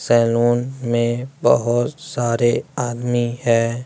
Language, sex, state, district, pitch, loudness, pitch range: Hindi, male, Bihar, West Champaran, 120 Hz, -19 LUFS, 120-125 Hz